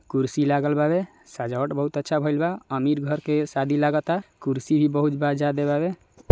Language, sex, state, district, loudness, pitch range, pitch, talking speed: Maithili, male, Bihar, Samastipur, -24 LUFS, 145-150 Hz, 145 Hz, 180 wpm